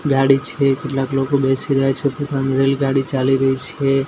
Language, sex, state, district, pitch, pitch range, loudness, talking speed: Gujarati, male, Gujarat, Gandhinagar, 135 Hz, 135-140 Hz, -18 LUFS, 160 wpm